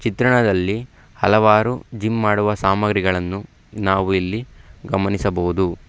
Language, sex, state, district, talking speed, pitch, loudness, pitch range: Kannada, male, Karnataka, Bangalore, 80 wpm, 105 Hz, -19 LUFS, 95-110 Hz